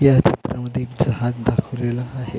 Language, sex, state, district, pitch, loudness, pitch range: Marathi, male, Maharashtra, Pune, 125 Hz, -21 LUFS, 120-135 Hz